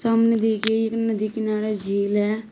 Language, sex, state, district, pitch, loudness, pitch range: Hindi, female, Uttar Pradesh, Shamli, 220 Hz, -22 LUFS, 215-225 Hz